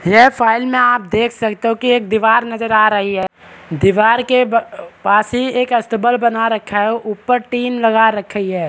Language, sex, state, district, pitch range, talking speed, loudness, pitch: Hindi, male, Chhattisgarh, Balrampur, 215-245 Hz, 195 wpm, -14 LUFS, 225 Hz